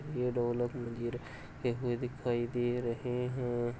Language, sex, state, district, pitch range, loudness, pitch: Hindi, male, Uttar Pradesh, Jalaun, 120-125 Hz, -35 LUFS, 120 Hz